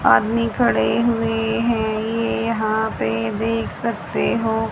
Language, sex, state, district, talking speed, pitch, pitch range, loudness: Hindi, female, Haryana, Jhajjar, 125 wpm, 225 Hz, 215-230 Hz, -20 LUFS